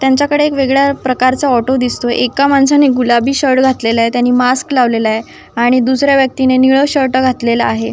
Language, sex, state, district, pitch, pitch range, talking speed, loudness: Marathi, female, Maharashtra, Nagpur, 260 Hz, 245-275 Hz, 150 wpm, -12 LUFS